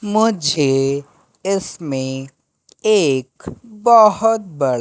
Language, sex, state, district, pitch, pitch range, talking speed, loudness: Hindi, male, Madhya Pradesh, Katni, 160 Hz, 135-215 Hz, 60 wpm, -17 LUFS